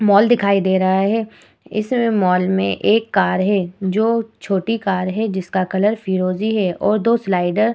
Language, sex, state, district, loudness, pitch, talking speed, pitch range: Hindi, female, Uttar Pradesh, Muzaffarnagar, -18 LUFS, 195 Hz, 180 wpm, 185-220 Hz